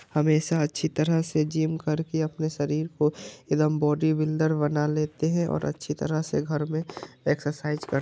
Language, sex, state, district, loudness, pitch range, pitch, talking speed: Hindi, male, Bihar, Vaishali, -26 LUFS, 150-160 Hz, 155 Hz, 180 wpm